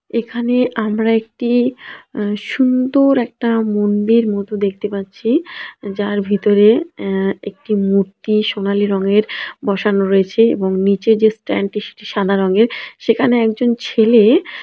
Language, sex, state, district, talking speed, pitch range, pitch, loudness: Bengali, female, West Bengal, Kolkata, 120 wpm, 200-235 Hz, 215 Hz, -16 LUFS